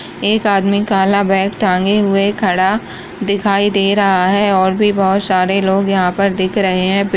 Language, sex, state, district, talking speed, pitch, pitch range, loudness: Kumaoni, female, Uttarakhand, Uttarkashi, 190 wpm, 195 Hz, 190-200 Hz, -14 LUFS